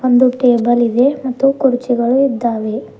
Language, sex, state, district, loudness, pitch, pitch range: Kannada, female, Karnataka, Bidar, -14 LUFS, 250 Hz, 235-265 Hz